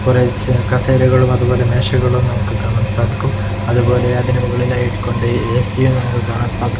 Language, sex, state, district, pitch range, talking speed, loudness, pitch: Malayalam, male, Kerala, Kozhikode, 115-125 Hz, 130 wpm, -15 LUFS, 120 Hz